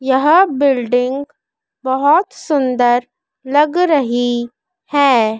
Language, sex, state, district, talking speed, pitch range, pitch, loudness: Hindi, female, Madhya Pradesh, Dhar, 80 wpm, 245-300 Hz, 270 Hz, -15 LUFS